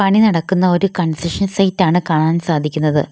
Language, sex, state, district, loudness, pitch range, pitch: Malayalam, female, Kerala, Kollam, -16 LUFS, 160-195 Hz, 175 Hz